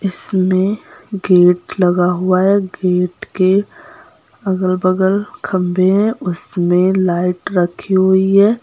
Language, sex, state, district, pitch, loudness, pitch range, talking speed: Hindi, female, Uttar Pradesh, Lucknow, 185 Hz, -15 LUFS, 180-200 Hz, 105 wpm